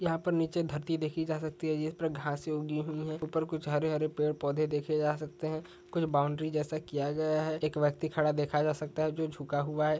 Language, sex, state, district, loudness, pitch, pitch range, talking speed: Hindi, male, Maharashtra, Sindhudurg, -33 LUFS, 155 Hz, 150-160 Hz, 245 wpm